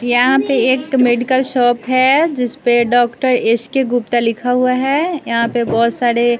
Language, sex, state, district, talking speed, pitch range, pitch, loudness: Hindi, female, Bihar, West Champaran, 170 wpm, 240-260 Hz, 245 Hz, -14 LUFS